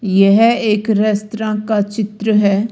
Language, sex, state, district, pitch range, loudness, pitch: Hindi, female, Rajasthan, Jaipur, 205-220 Hz, -15 LUFS, 215 Hz